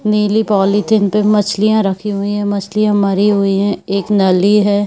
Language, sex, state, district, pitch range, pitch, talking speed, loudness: Hindi, female, Chhattisgarh, Bilaspur, 200-210 Hz, 205 Hz, 170 wpm, -14 LUFS